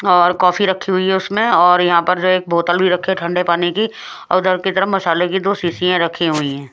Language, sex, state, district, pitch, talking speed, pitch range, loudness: Hindi, female, Haryana, Charkhi Dadri, 180 Hz, 275 wpm, 175-190 Hz, -15 LUFS